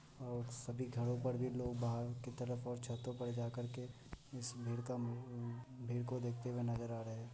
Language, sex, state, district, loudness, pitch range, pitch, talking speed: Hindi, male, Bihar, Muzaffarpur, -44 LUFS, 120-125 Hz, 120 Hz, 215 wpm